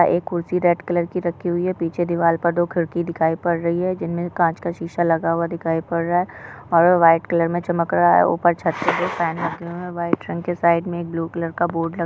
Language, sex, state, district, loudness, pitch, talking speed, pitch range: Hindi, female, Maharashtra, Aurangabad, -20 LUFS, 170 Hz, 270 wpm, 165-175 Hz